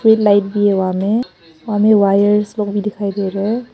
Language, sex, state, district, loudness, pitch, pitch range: Hindi, female, Arunachal Pradesh, Papum Pare, -15 LUFS, 205 Hz, 195-210 Hz